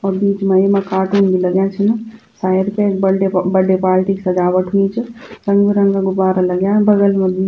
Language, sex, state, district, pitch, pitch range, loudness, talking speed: Garhwali, female, Uttarakhand, Tehri Garhwal, 195 Hz, 185-200 Hz, -15 LUFS, 190 wpm